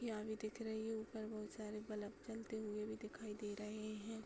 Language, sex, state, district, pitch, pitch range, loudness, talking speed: Hindi, female, Uttar Pradesh, Hamirpur, 215 Hz, 210-220 Hz, -48 LUFS, 225 wpm